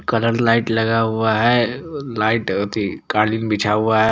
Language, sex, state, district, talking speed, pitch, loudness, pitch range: Hindi, male, Chandigarh, Chandigarh, 175 wpm, 110 Hz, -18 LUFS, 105-115 Hz